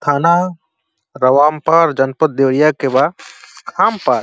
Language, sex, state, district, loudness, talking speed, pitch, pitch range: Bhojpuri, male, Uttar Pradesh, Deoria, -14 LUFS, 115 wpm, 150 Hz, 135-165 Hz